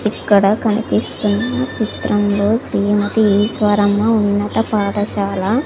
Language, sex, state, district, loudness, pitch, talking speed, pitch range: Telugu, female, Andhra Pradesh, Sri Satya Sai, -16 LUFS, 205 Hz, 75 wpm, 205-220 Hz